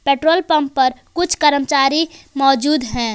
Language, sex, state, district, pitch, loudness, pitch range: Hindi, female, Jharkhand, Palamu, 285 Hz, -16 LUFS, 270-315 Hz